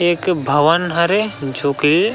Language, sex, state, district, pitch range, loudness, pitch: Chhattisgarhi, male, Chhattisgarh, Rajnandgaon, 145-180 Hz, -16 LUFS, 170 Hz